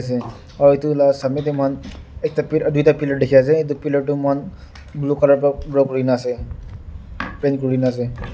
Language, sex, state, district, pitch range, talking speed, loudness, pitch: Nagamese, male, Nagaland, Dimapur, 125-145 Hz, 170 wpm, -18 LUFS, 140 Hz